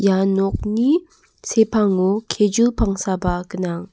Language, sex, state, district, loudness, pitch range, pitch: Garo, female, Meghalaya, West Garo Hills, -19 LUFS, 185-225 Hz, 195 Hz